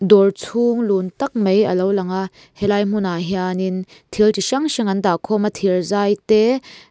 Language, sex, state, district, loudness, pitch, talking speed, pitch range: Mizo, female, Mizoram, Aizawl, -18 LUFS, 200 Hz, 175 wpm, 185-215 Hz